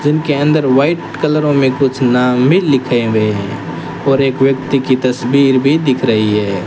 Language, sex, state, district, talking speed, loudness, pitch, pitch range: Hindi, male, Rajasthan, Bikaner, 190 wpm, -13 LUFS, 130 Hz, 125-140 Hz